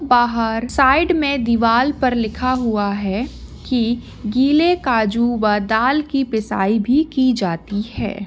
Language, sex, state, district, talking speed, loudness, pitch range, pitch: Hindi, female, Rajasthan, Churu, 140 wpm, -18 LUFS, 215-265 Hz, 235 Hz